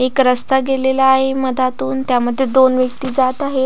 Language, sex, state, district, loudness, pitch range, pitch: Marathi, female, Maharashtra, Pune, -15 LUFS, 255-265 Hz, 265 Hz